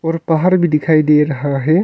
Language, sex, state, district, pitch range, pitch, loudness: Hindi, male, Arunachal Pradesh, Longding, 150-165 Hz, 160 Hz, -14 LUFS